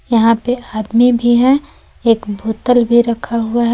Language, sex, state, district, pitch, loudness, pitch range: Hindi, female, Jharkhand, Palamu, 235 Hz, -14 LUFS, 230-245 Hz